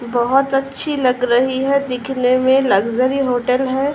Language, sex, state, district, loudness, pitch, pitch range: Hindi, female, Uttar Pradesh, Ghazipur, -16 LUFS, 260 Hz, 250-270 Hz